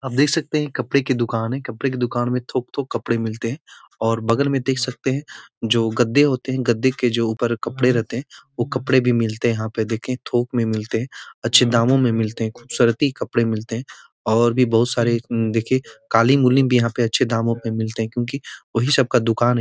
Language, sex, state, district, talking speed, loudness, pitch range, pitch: Hindi, male, Bihar, Gaya, 235 wpm, -20 LUFS, 115-130 Hz, 120 Hz